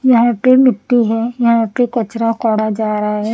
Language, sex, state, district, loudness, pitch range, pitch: Hindi, female, Punjab, Pathankot, -14 LUFS, 220-245 Hz, 230 Hz